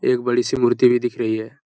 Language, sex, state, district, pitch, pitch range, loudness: Hindi, male, Uttar Pradesh, Hamirpur, 120 Hz, 120-125 Hz, -19 LUFS